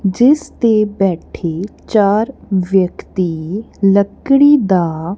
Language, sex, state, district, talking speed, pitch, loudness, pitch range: Punjabi, female, Punjab, Kapurthala, 80 wpm, 195 Hz, -15 LUFS, 185-220 Hz